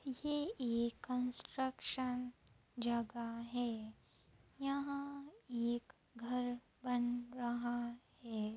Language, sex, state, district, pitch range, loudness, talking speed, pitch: Hindi, female, Uttar Pradesh, Ghazipur, 235-260 Hz, -41 LUFS, 85 wpm, 245 Hz